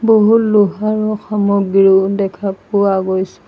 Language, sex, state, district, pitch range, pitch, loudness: Assamese, female, Assam, Sonitpur, 195-215 Hz, 200 Hz, -14 LUFS